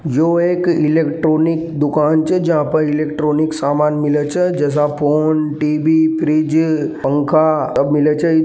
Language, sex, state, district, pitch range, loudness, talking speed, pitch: Marwari, male, Rajasthan, Nagaur, 150-160 Hz, -15 LUFS, 150 wpm, 155 Hz